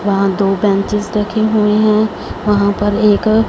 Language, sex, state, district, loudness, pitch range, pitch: Hindi, female, Punjab, Fazilka, -14 LUFS, 200-215 Hz, 210 Hz